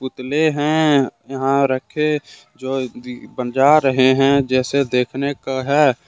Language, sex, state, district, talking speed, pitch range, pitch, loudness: Hindi, male, Jharkhand, Deoghar, 120 wpm, 130-145 Hz, 135 Hz, -18 LUFS